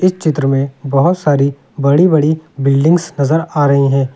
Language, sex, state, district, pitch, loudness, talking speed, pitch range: Hindi, male, Uttar Pradesh, Lucknow, 145 Hz, -13 LUFS, 160 wpm, 135-160 Hz